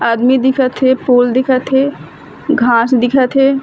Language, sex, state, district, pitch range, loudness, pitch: Chhattisgarhi, female, Chhattisgarh, Bilaspur, 245-265 Hz, -12 LUFS, 260 Hz